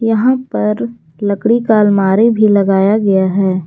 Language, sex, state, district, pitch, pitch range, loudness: Hindi, female, Jharkhand, Garhwa, 210 Hz, 195-225 Hz, -12 LUFS